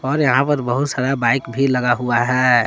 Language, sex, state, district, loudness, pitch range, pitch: Hindi, male, Jharkhand, Palamu, -17 LUFS, 120-135 Hz, 130 Hz